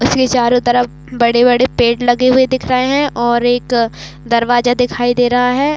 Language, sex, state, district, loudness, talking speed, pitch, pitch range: Hindi, female, Chhattisgarh, Raigarh, -13 LUFS, 195 wpm, 245 Hz, 240-255 Hz